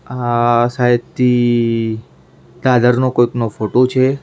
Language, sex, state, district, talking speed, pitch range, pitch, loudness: Gujarati, male, Maharashtra, Mumbai Suburban, 100 wpm, 120-125 Hz, 120 Hz, -15 LUFS